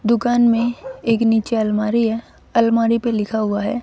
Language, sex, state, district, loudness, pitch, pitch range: Hindi, female, Haryana, Rohtak, -18 LUFS, 230 Hz, 220-235 Hz